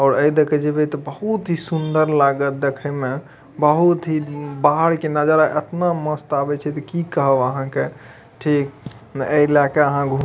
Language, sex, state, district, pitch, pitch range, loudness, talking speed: Maithili, male, Bihar, Madhepura, 150 Hz, 140-155 Hz, -19 LUFS, 175 wpm